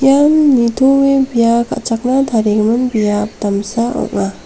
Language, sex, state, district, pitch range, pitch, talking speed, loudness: Garo, female, Meghalaya, South Garo Hills, 215-270 Hz, 235 Hz, 110 wpm, -13 LUFS